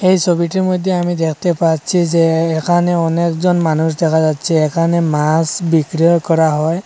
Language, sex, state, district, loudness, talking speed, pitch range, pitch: Bengali, male, Assam, Hailakandi, -14 LUFS, 155 wpm, 160-175 Hz, 165 Hz